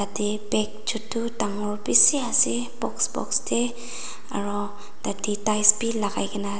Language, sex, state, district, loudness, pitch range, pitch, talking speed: Nagamese, female, Nagaland, Dimapur, -23 LUFS, 205-230 Hz, 210 Hz, 155 wpm